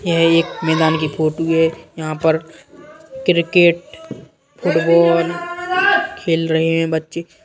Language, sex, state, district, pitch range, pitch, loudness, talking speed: Bundeli, male, Uttar Pradesh, Jalaun, 160-185 Hz, 165 Hz, -16 LUFS, 115 wpm